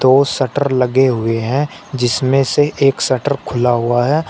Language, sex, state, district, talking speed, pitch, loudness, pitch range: Hindi, male, Uttar Pradesh, Shamli, 170 wpm, 130 Hz, -15 LUFS, 125-140 Hz